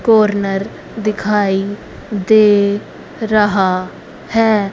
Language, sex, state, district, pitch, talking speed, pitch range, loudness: Hindi, female, Haryana, Rohtak, 205 Hz, 65 wpm, 195-215 Hz, -15 LUFS